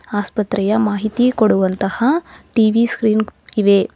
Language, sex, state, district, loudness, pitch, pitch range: Kannada, female, Karnataka, Bangalore, -17 LUFS, 215 Hz, 200-235 Hz